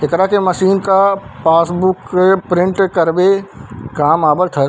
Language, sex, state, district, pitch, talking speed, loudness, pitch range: Chhattisgarhi, male, Chhattisgarh, Bilaspur, 185 Hz, 140 wpm, -13 LUFS, 165-190 Hz